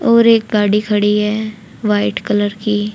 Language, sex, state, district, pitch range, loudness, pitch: Hindi, female, Haryana, Charkhi Dadri, 205-215 Hz, -15 LUFS, 210 Hz